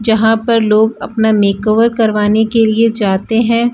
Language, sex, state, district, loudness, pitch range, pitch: Hindi, female, Rajasthan, Bikaner, -12 LUFS, 215-230 Hz, 220 Hz